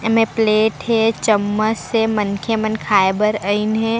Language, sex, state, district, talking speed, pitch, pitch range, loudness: Chhattisgarhi, female, Chhattisgarh, Raigarh, 165 wpm, 220 Hz, 210-225 Hz, -17 LUFS